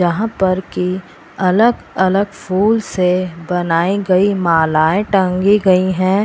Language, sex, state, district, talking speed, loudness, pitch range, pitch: Hindi, female, Bihar, Purnia, 115 wpm, -15 LUFS, 180-200 Hz, 185 Hz